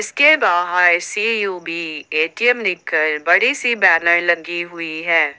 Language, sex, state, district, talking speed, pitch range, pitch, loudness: Hindi, female, Jharkhand, Ranchi, 120 wpm, 165-210 Hz, 175 Hz, -16 LUFS